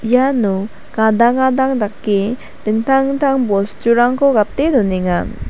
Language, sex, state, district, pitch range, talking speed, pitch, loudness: Garo, female, Meghalaya, South Garo Hills, 210-265 Hz, 100 wpm, 235 Hz, -15 LUFS